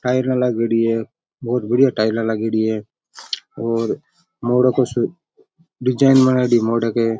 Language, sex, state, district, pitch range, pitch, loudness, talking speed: Rajasthani, male, Rajasthan, Churu, 115-130 Hz, 120 Hz, -18 LUFS, 140 wpm